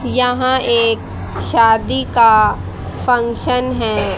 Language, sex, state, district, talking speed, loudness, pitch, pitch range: Hindi, female, Haryana, Rohtak, 85 wpm, -14 LUFS, 235 Hz, 230-250 Hz